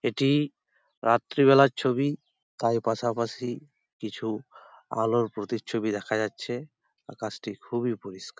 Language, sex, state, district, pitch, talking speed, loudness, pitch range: Bengali, male, West Bengal, Jhargram, 115 Hz, 100 wpm, -27 LUFS, 110-135 Hz